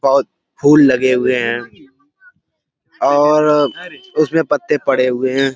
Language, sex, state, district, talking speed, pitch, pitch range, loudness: Hindi, male, Uttar Pradesh, Budaun, 120 wpm, 145 Hz, 130-150 Hz, -14 LUFS